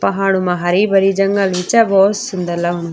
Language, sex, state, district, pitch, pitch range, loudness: Garhwali, female, Uttarakhand, Tehri Garhwal, 195 Hz, 180-195 Hz, -15 LUFS